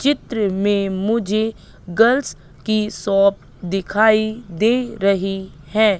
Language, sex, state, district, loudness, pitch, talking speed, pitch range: Hindi, female, Madhya Pradesh, Katni, -19 LUFS, 210 Hz, 100 wpm, 195-225 Hz